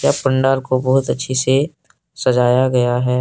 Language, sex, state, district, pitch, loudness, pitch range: Hindi, male, Jharkhand, Deoghar, 130 Hz, -16 LUFS, 125-135 Hz